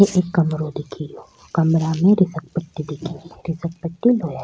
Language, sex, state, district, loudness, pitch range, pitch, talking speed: Rajasthani, female, Rajasthan, Churu, -21 LUFS, 155-175 Hz, 165 Hz, 190 wpm